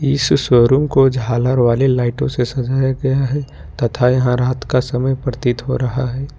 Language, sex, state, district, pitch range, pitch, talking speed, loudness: Hindi, male, Jharkhand, Ranchi, 125-135 Hz, 130 Hz, 180 wpm, -16 LUFS